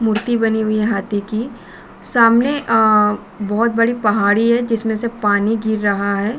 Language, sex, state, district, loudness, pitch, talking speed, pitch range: Hindi, female, Jharkhand, Sahebganj, -16 LUFS, 220 Hz, 180 wpm, 210-230 Hz